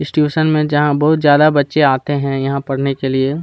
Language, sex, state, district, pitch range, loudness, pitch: Hindi, male, Chhattisgarh, Kabirdham, 135-150 Hz, -14 LUFS, 145 Hz